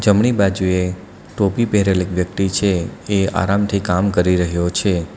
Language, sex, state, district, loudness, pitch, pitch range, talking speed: Gujarati, male, Gujarat, Valsad, -18 LUFS, 95 Hz, 90-100 Hz, 150 wpm